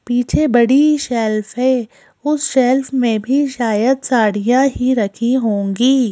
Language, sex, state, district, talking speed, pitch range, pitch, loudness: Hindi, female, Madhya Pradesh, Bhopal, 125 wpm, 225-265 Hz, 250 Hz, -15 LUFS